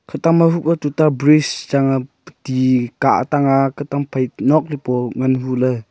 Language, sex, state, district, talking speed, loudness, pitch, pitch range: Wancho, male, Arunachal Pradesh, Longding, 215 wpm, -17 LUFS, 135 Hz, 130-150 Hz